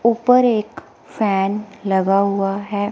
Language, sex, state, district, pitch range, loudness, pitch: Hindi, female, Himachal Pradesh, Shimla, 195-220 Hz, -18 LUFS, 205 Hz